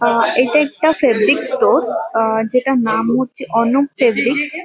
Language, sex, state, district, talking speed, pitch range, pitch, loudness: Bengali, female, West Bengal, Kolkata, 155 wpm, 230-295 Hz, 250 Hz, -15 LUFS